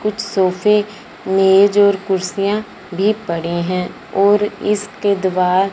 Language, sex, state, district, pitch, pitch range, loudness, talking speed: Hindi, female, Punjab, Fazilka, 195 Hz, 185-210 Hz, -16 LUFS, 115 wpm